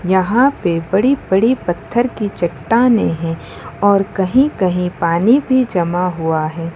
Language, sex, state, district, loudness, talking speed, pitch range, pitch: Hindi, female, Gujarat, Valsad, -15 LUFS, 140 wpm, 170-235 Hz, 190 Hz